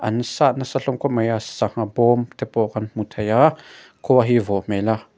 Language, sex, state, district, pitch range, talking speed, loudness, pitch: Mizo, male, Mizoram, Aizawl, 110-125 Hz, 220 wpm, -20 LUFS, 115 Hz